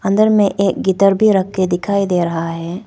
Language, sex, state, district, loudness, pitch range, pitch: Hindi, female, Arunachal Pradesh, Papum Pare, -15 LUFS, 180-200 Hz, 195 Hz